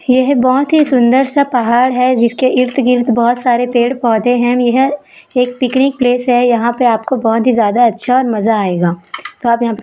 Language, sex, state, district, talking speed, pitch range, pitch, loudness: Hindi, female, Chhattisgarh, Raipur, 195 wpm, 235-255 Hz, 245 Hz, -12 LUFS